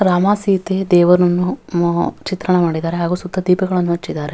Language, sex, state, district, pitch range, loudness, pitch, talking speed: Kannada, female, Karnataka, Dharwad, 170-190 Hz, -16 LUFS, 180 Hz, 140 wpm